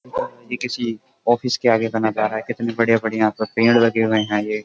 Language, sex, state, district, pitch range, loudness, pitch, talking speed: Hindi, male, Uttar Pradesh, Jyotiba Phule Nagar, 110-120 Hz, -20 LUFS, 115 Hz, 205 wpm